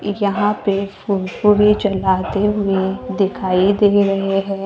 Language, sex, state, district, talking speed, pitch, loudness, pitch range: Hindi, female, Maharashtra, Gondia, 115 wpm, 200 Hz, -17 LUFS, 195-205 Hz